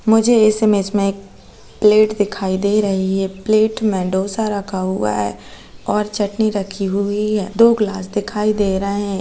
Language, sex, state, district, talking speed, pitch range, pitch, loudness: Hindi, female, Uttar Pradesh, Jalaun, 175 wpm, 195-215 Hz, 205 Hz, -17 LUFS